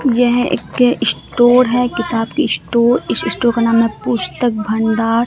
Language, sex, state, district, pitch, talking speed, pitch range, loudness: Hindi, female, Bihar, Katihar, 240 Hz, 160 wpm, 230-245 Hz, -15 LUFS